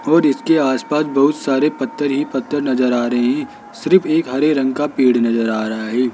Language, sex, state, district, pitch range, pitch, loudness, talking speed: Hindi, male, Rajasthan, Jaipur, 125-150 Hz, 135 Hz, -17 LUFS, 225 wpm